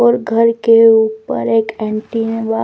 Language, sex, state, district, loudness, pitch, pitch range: Hindi, female, Bihar, West Champaran, -13 LUFS, 225 Hz, 220-230 Hz